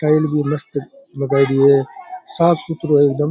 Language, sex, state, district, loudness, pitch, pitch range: Rajasthani, male, Rajasthan, Churu, -17 LUFS, 150 Hz, 140-165 Hz